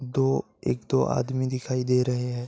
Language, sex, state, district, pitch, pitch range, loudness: Hindi, male, Uttar Pradesh, Gorakhpur, 125 Hz, 120-130 Hz, -26 LUFS